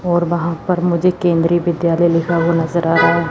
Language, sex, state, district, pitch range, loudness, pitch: Hindi, female, Chandigarh, Chandigarh, 165-175 Hz, -15 LUFS, 170 Hz